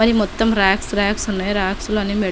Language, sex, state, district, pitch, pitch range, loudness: Telugu, female, Telangana, Nalgonda, 205 Hz, 195-210 Hz, -18 LUFS